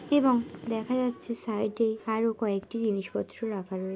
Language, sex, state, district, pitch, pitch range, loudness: Bengali, female, West Bengal, Purulia, 225 Hz, 210-235 Hz, -30 LUFS